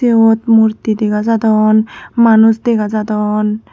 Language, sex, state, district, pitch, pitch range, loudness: Chakma, female, Tripura, Unakoti, 220 Hz, 215-225 Hz, -12 LUFS